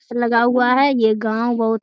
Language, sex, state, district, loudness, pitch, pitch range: Hindi, female, Bihar, Jamui, -17 LUFS, 235 Hz, 225-245 Hz